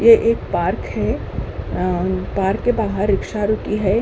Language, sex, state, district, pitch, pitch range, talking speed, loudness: Hindi, female, Uttar Pradesh, Hamirpur, 210 Hz, 190-220 Hz, 165 wpm, -20 LUFS